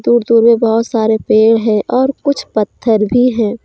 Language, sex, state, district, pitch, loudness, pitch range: Hindi, female, Jharkhand, Deoghar, 230 Hz, -12 LUFS, 220-240 Hz